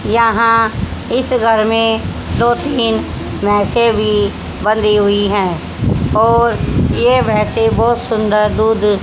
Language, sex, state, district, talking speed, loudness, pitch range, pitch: Hindi, female, Haryana, Jhajjar, 115 wpm, -14 LUFS, 210-230 Hz, 225 Hz